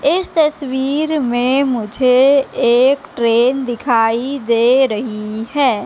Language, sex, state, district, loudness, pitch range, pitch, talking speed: Hindi, female, Madhya Pradesh, Katni, -15 LUFS, 235-275 Hz, 255 Hz, 100 wpm